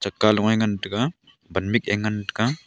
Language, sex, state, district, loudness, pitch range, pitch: Wancho, male, Arunachal Pradesh, Longding, -23 LUFS, 105-115 Hz, 110 Hz